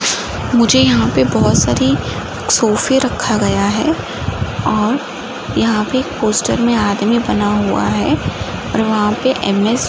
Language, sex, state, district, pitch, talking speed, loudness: Hindi, female, Uttar Pradesh, Gorakhpur, 210 Hz, 140 wpm, -15 LUFS